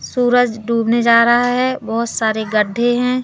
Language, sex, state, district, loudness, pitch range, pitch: Hindi, female, Madhya Pradesh, Katni, -15 LUFS, 225-245 Hz, 235 Hz